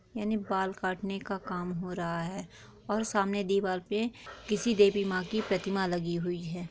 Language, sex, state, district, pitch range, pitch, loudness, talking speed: Hindi, female, Chhattisgarh, Korba, 180-205 Hz, 195 Hz, -31 LUFS, 180 wpm